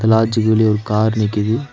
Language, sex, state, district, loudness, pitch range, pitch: Tamil, male, Tamil Nadu, Nilgiris, -16 LUFS, 105-110 Hz, 110 Hz